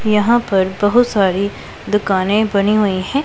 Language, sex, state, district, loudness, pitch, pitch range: Hindi, female, Punjab, Pathankot, -15 LUFS, 205 Hz, 195-215 Hz